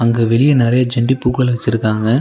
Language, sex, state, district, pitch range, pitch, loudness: Tamil, male, Tamil Nadu, Nilgiris, 115-125 Hz, 120 Hz, -14 LUFS